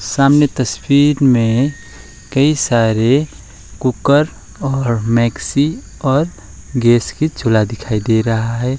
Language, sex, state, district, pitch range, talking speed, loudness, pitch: Hindi, male, West Bengal, Alipurduar, 115-140 Hz, 110 wpm, -15 LUFS, 125 Hz